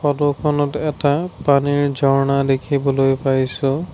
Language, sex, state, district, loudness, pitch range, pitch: Assamese, male, Assam, Sonitpur, -18 LUFS, 135-145 Hz, 140 Hz